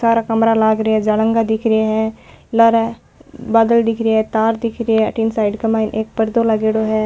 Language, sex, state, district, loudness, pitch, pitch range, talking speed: Marwari, female, Rajasthan, Nagaur, -16 LUFS, 225 Hz, 220-230 Hz, 220 wpm